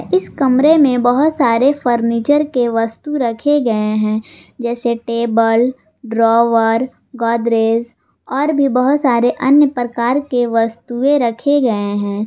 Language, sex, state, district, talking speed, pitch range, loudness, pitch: Hindi, female, Jharkhand, Garhwa, 125 wpm, 230-275 Hz, -15 LUFS, 240 Hz